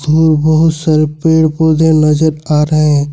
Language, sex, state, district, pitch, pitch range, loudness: Hindi, male, Jharkhand, Ranchi, 155 Hz, 150-160 Hz, -11 LUFS